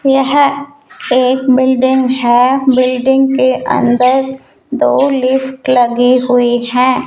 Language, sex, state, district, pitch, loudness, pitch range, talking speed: Hindi, female, Rajasthan, Jaipur, 260 Hz, -11 LUFS, 250-265 Hz, 100 wpm